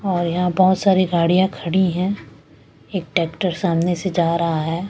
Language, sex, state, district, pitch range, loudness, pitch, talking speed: Hindi, female, Bihar, West Champaran, 170-185 Hz, -19 LUFS, 180 Hz, 170 wpm